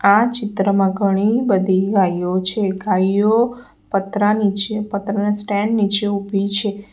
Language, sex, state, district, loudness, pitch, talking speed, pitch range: Gujarati, female, Gujarat, Valsad, -18 LUFS, 200 Hz, 120 wpm, 195-210 Hz